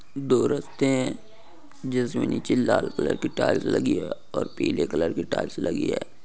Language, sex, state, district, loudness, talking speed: Hindi, male, Bihar, Saharsa, -25 LUFS, 175 wpm